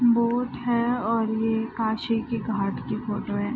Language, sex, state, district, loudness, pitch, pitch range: Hindi, female, Bihar, Araria, -26 LUFS, 225 Hz, 220-235 Hz